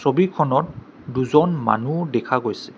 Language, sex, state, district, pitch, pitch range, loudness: Assamese, male, Assam, Kamrup Metropolitan, 140 Hz, 130-160 Hz, -20 LUFS